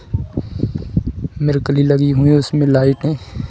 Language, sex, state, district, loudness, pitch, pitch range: Hindi, male, Madhya Pradesh, Bhopal, -16 LUFS, 140 Hz, 135-145 Hz